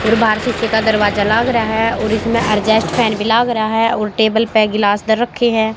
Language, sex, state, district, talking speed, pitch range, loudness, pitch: Hindi, female, Haryana, Jhajjar, 240 wpm, 215-230 Hz, -15 LUFS, 220 Hz